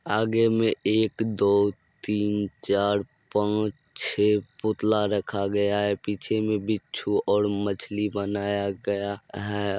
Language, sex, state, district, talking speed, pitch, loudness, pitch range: Maithili, male, Bihar, Madhepura, 125 wpm, 105 Hz, -26 LUFS, 100-105 Hz